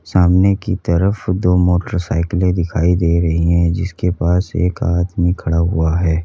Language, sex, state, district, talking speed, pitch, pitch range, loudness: Hindi, male, Uttar Pradesh, Lalitpur, 155 wpm, 90 Hz, 85-90 Hz, -16 LUFS